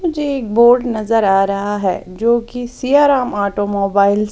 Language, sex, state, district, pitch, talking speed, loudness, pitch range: Hindi, female, Odisha, Sambalpur, 225 Hz, 155 wpm, -15 LUFS, 200-250 Hz